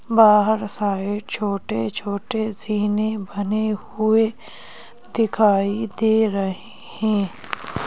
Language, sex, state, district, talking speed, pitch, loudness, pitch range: Hindi, female, Madhya Pradesh, Bhopal, 85 wpm, 210 Hz, -21 LUFS, 200-220 Hz